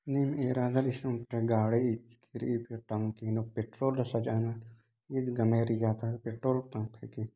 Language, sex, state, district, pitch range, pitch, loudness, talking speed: Sadri, male, Chhattisgarh, Jashpur, 115-125 Hz, 115 Hz, -33 LUFS, 120 wpm